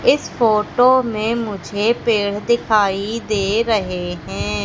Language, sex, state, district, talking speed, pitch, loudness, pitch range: Hindi, female, Madhya Pradesh, Katni, 115 wpm, 215 Hz, -18 LUFS, 200-230 Hz